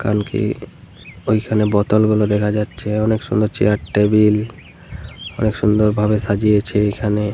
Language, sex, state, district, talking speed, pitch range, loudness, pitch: Bengali, male, Jharkhand, Jamtara, 140 wpm, 105-110 Hz, -17 LUFS, 105 Hz